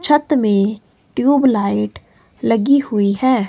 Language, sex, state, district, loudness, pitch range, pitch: Hindi, female, Himachal Pradesh, Shimla, -16 LUFS, 200-275 Hz, 220 Hz